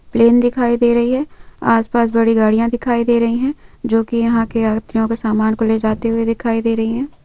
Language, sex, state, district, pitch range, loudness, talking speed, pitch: Hindi, female, West Bengal, North 24 Parganas, 225-240 Hz, -16 LUFS, 225 wpm, 230 Hz